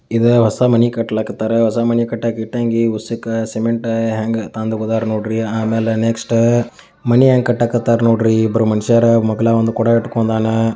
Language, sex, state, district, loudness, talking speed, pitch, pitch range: Kannada, male, Karnataka, Dakshina Kannada, -16 LUFS, 140 wpm, 115 Hz, 110-115 Hz